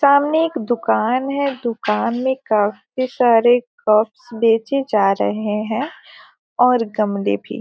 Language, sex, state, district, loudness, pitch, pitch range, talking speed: Hindi, female, Bihar, Gopalganj, -18 LUFS, 235 Hz, 215-260 Hz, 125 wpm